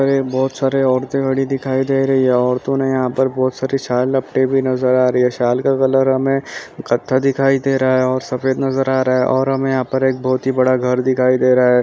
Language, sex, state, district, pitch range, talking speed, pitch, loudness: Hindi, male, Andhra Pradesh, Chittoor, 130-135 Hz, 250 wpm, 130 Hz, -16 LUFS